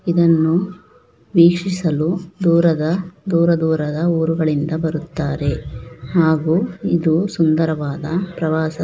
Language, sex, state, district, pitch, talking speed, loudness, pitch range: Kannada, female, Karnataka, Shimoga, 165 Hz, 70 wpm, -18 LUFS, 155-170 Hz